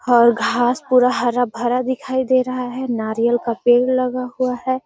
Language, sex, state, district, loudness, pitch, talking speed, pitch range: Magahi, female, Bihar, Gaya, -18 LUFS, 250 Hz, 175 wpm, 240-255 Hz